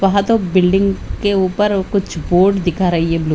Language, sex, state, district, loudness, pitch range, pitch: Hindi, female, Chandigarh, Chandigarh, -15 LUFS, 175-200 Hz, 190 Hz